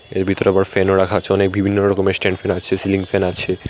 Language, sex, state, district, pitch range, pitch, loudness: Bengali, male, Tripura, Unakoti, 95-100 Hz, 95 Hz, -17 LUFS